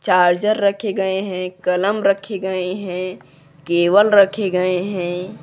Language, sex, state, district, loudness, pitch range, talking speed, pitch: Hindi, male, Jharkhand, Deoghar, -18 LUFS, 180-200 Hz, 135 wpm, 185 Hz